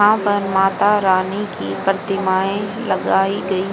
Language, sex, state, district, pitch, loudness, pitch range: Hindi, female, Haryana, Charkhi Dadri, 195 Hz, -18 LUFS, 190-205 Hz